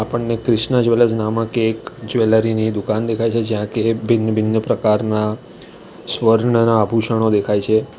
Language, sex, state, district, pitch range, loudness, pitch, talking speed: Gujarati, male, Gujarat, Valsad, 110-115 Hz, -17 LUFS, 110 Hz, 145 wpm